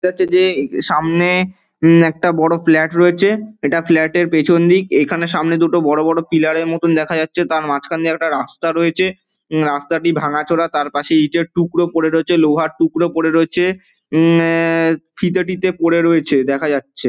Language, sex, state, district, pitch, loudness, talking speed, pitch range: Bengali, male, West Bengal, Dakshin Dinajpur, 165 Hz, -15 LUFS, 190 wpm, 160-175 Hz